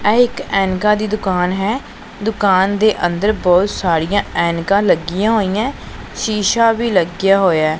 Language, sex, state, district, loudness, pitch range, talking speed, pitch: Punjabi, female, Punjab, Pathankot, -16 LUFS, 185-215 Hz, 140 wpm, 200 Hz